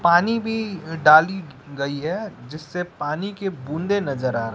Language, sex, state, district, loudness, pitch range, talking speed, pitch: Hindi, male, Bihar, West Champaran, -22 LUFS, 140-190 Hz, 145 wpm, 165 Hz